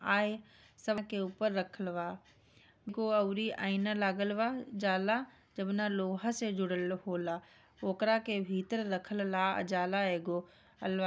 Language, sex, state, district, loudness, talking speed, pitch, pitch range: Bhojpuri, female, Bihar, Gopalganj, -34 LUFS, 135 wpm, 195 Hz, 185-210 Hz